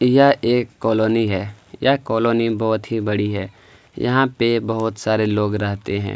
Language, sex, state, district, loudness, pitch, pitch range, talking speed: Hindi, male, Chhattisgarh, Kabirdham, -19 LUFS, 110 Hz, 105-115 Hz, 165 wpm